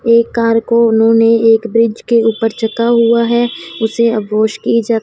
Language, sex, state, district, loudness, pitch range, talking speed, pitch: Hindi, female, Punjab, Fazilka, -12 LUFS, 225-235 Hz, 165 wpm, 230 Hz